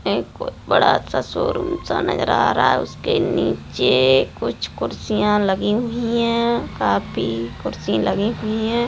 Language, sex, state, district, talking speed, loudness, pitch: Hindi, female, Bihar, Gaya, 140 wpm, -20 LUFS, 210 Hz